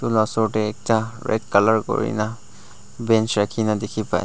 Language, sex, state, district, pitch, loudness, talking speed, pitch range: Nagamese, male, Nagaland, Dimapur, 110 Hz, -21 LUFS, 210 wpm, 105-115 Hz